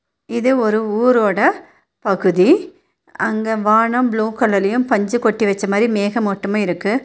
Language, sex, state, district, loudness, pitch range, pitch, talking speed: Tamil, female, Tamil Nadu, Nilgiris, -17 LUFS, 205-245 Hz, 220 Hz, 110 wpm